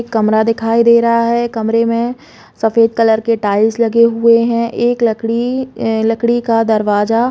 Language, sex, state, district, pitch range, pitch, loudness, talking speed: Hindi, female, Chhattisgarh, Bilaspur, 225-235 Hz, 230 Hz, -13 LUFS, 165 wpm